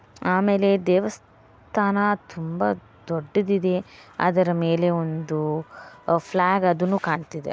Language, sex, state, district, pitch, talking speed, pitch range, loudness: Kannada, female, Karnataka, Bellary, 175 Hz, 90 wpm, 160-195 Hz, -23 LUFS